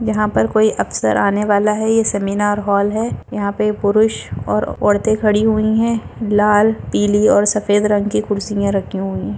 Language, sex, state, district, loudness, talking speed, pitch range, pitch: Hindi, female, Bihar, Lakhisarai, -16 LUFS, 185 wpm, 200-215 Hz, 205 Hz